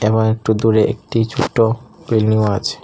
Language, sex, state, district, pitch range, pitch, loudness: Bengali, male, Tripura, Unakoti, 110-115 Hz, 110 Hz, -17 LUFS